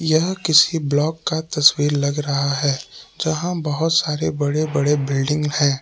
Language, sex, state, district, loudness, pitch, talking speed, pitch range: Hindi, male, Jharkhand, Palamu, -19 LUFS, 150 Hz, 155 wpm, 140-160 Hz